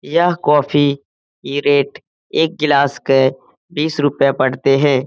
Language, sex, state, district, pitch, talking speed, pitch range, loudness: Hindi, male, Bihar, Jamui, 140 Hz, 130 wpm, 135-150 Hz, -16 LUFS